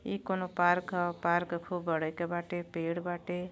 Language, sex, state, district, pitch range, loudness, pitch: Bhojpuri, female, Uttar Pradesh, Deoria, 170-180 Hz, -33 LUFS, 175 Hz